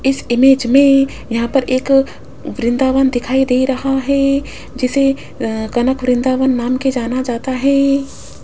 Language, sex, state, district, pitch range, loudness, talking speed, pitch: Hindi, female, Rajasthan, Jaipur, 250-270 Hz, -15 LUFS, 140 wpm, 265 Hz